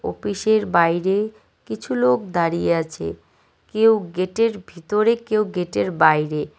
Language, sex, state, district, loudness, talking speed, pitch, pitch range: Bengali, male, West Bengal, Cooch Behar, -20 LUFS, 110 wpm, 180 Hz, 155-215 Hz